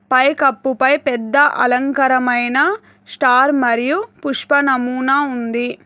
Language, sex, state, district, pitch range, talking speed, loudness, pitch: Telugu, female, Telangana, Hyderabad, 250-285 Hz, 90 wpm, -15 LUFS, 265 Hz